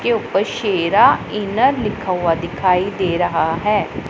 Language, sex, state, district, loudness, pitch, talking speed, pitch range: Hindi, female, Punjab, Pathankot, -17 LUFS, 190 Hz, 145 wpm, 175-210 Hz